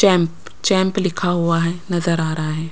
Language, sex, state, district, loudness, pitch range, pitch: Hindi, female, Maharashtra, Washim, -19 LUFS, 165-185 Hz, 170 Hz